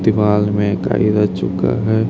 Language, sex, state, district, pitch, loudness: Hindi, male, Chhattisgarh, Raipur, 105 Hz, -16 LUFS